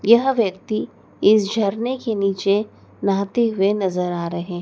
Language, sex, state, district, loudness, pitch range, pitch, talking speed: Hindi, female, Madhya Pradesh, Dhar, -20 LUFS, 190-225 Hz, 200 Hz, 155 wpm